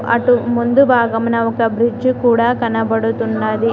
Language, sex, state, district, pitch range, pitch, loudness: Telugu, female, Telangana, Mahabubabad, 225-240 Hz, 235 Hz, -15 LUFS